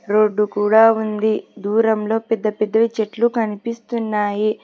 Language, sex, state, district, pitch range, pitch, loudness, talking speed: Telugu, female, Telangana, Hyderabad, 210-225 Hz, 220 Hz, -18 LUFS, 105 wpm